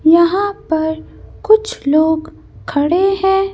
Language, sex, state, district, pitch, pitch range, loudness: Hindi, female, Madhya Pradesh, Bhopal, 345 Hz, 315-390 Hz, -15 LUFS